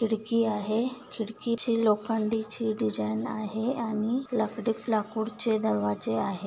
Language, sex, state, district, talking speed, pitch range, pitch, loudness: Marathi, female, Maharashtra, Nagpur, 95 wpm, 210-230 Hz, 220 Hz, -29 LUFS